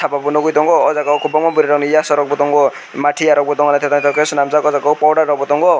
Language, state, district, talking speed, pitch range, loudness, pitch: Kokborok, Tripura, West Tripura, 240 wpm, 145-155 Hz, -14 LUFS, 145 Hz